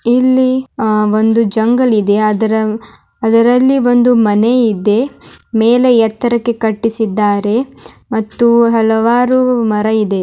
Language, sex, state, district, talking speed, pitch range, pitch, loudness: Kannada, male, Karnataka, Dharwad, 100 wpm, 215-245 Hz, 230 Hz, -12 LUFS